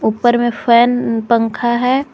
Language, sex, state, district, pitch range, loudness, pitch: Hindi, female, Jharkhand, Garhwa, 230-245 Hz, -14 LUFS, 240 Hz